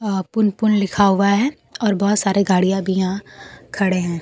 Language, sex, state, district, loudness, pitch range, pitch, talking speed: Hindi, female, Bihar, Kaimur, -18 LUFS, 190-210 Hz, 195 Hz, 200 wpm